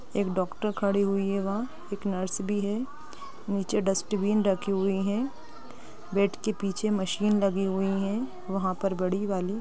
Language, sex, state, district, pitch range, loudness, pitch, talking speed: Hindi, female, Chhattisgarh, Rajnandgaon, 195-210 Hz, -28 LUFS, 200 Hz, 160 wpm